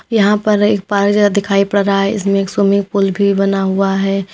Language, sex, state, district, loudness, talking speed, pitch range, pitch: Hindi, female, Uttar Pradesh, Lalitpur, -14 LUFS, 235 wpm, 195-205 Hz, 200 Hz